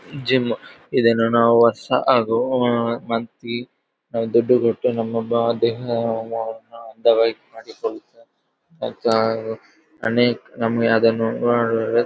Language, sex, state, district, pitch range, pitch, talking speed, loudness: Kannada, male, Karnataka, Dakshina Kannada, 115-120 Hz, 115 Hz, 70 wpm, -20 LUFS